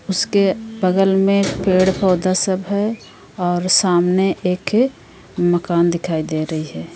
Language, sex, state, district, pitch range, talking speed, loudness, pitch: Hindi, female, Bihar, Darbhanga, 175-195 Hz, 130 wpm, -17 LUFS, 185 Hz